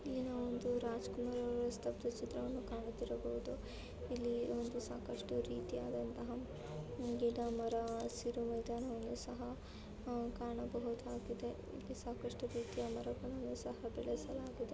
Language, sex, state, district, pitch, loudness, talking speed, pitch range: Kannada, female, Karnataka, Bellary, 235 Hz, -43 LUFS, 85 wpm, 175-240 Hz